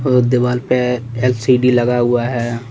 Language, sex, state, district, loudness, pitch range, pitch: Hindi, male, Jharkhand, Deoghar, -15 LUFS, 120-125 Hz, 125 Hz